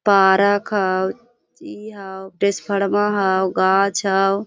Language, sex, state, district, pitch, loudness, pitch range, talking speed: Hindi, female, Jharkhand, Sahebganj, 195 Hz, -18 LUFS, 190-205 Hz, 120 wpm